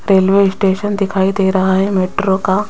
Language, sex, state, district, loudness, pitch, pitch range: Hindi, female, Rajasthan, Jaipur, -14 LUFS, 195 Hz, 190-195 Hz